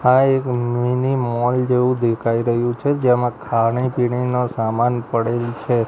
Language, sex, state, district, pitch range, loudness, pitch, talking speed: Gujarati, male, Gujarat, Gandhinagar, 120-125 Hz, -19 LUFS, 120 Hz, 145 wpm